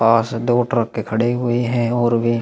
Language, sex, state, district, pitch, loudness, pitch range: Hindi, male, Chhattisgarh, Korba, 120 Hz, -18 LUFS, 115-120 Hz